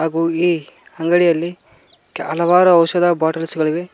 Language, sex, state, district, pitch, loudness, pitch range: Kannada, male, Karnataka, Koppal, 170 Hz, -16 LUFS, 160-175 Hz